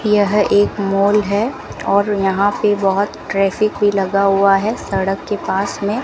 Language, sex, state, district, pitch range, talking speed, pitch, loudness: Hindi, female, Rajasthan, Bikaner, 195-210 Hz, 180 wpm, 200 Hz, -16 LUFS